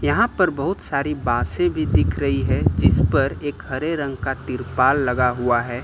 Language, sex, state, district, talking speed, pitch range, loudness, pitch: Hindi, male, Uttar Pradesh, Lucknow, 195 wpm, 105-135 Hz, -21 LUFS, 125 Hz